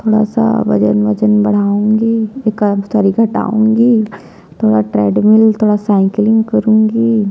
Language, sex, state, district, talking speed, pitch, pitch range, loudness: Hindi, female, Chhattisgarh, Jashpur, 100 wpm, 215 Hz, 195-220 Hz, -12 LUFS